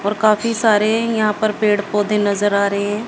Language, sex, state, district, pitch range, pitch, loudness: Hindi, female, Haryana, Jhajjar, 205-215 Hz, 210 Hz, -17 LUFS